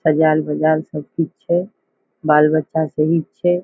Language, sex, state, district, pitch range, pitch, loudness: Maithili, female, Bihar, Saharsa, 155-165 Hz, 155 Hz, -18 LUFS